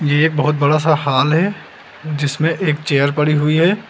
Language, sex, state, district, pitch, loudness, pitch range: Hindi, male, Uttar Pradesh, Lucknow, 150 Hz, -16 LUFS, 145-160 Hz